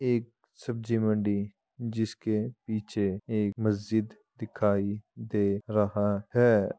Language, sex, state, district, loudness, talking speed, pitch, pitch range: Hindi, male, Uttar Pradesh, Muzaffarnagar, -29 LUFS, 95 wpm, 110 Hz, 105-115 Hz